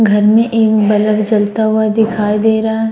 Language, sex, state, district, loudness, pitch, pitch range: Hindi, female, Uttar Pradesh, Muzaffarnagar, -12 LUFS, 220 Hz, 210-220 Hz